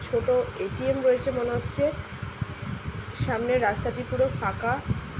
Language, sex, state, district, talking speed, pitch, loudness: Bengali, female, West Bengal, Jhargram, 105 wpm, 270 Hz, -27 LUFS